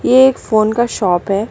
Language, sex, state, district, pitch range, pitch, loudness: Hindi, female, West Bengal, Alipurduar, 200-245 Hz, 215 Hz, -14 LUFS